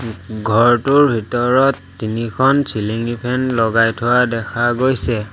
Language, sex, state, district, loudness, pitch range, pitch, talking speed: Assamese, male, Assam, Sonitpur, -16 LUFS, 110-125 Hz, 120 Hz, 100 wpm